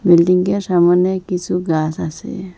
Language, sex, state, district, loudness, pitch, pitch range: Bengali, female, Assam, Hailakandi, -16 LUFS, 180 Hz, 170-185 Hz